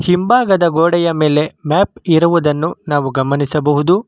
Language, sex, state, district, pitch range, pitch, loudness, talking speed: Kannada, male, Karnataka, Bangalore, 150-175 Hz, 165 Hz, -14 LUFS, 105 wpm